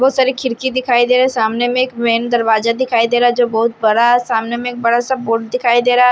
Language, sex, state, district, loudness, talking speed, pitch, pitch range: Hindi, male, Odisha, Nuapada, -14 LUFS, 245 wpm, 240 Hz, 230-250 Hz